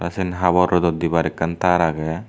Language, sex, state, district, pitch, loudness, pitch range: Chakma, male, Tripura, Dhalai, 85 Hz, -19 LUFS, 80-90 Hz